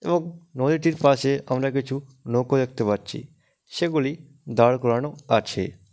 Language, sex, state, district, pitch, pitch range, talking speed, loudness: Bengali, male, West Bengal, Malda, 135 Hz, 120-150 Hz, 120 wpm, -23 LUFS